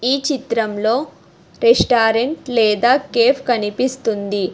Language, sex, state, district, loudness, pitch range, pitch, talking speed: Telugu, female, Telangana, Hyderabad, -17 LUFS, 225-270 Hz, 240 Hz, 80 wpm